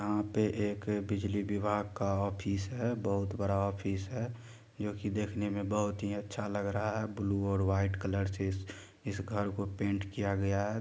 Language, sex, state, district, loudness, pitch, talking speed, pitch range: Angika, male, Bihar, Supaul, -34 LUFS, 100 Hz, 190 wpm, 100-105 Hz